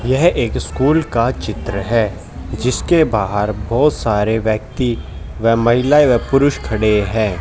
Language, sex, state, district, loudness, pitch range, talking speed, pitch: Hindi, male, Haryana, Jhajjar, -16 LUFS, 105-130 Hz, 140 wpm, 115 Hz